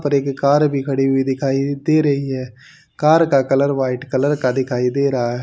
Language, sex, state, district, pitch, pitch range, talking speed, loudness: Hindi, male, Haryana, Rohtak, 135 Hz, 130-140 Hz, 210 wpm, -17 LUFS